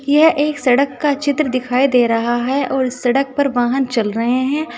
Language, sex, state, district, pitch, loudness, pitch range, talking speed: Hindi, female, Uttar Pradesh, Saharanpur, 260 Hz, -16 LUFS, 245-285 Hz, 200 wpm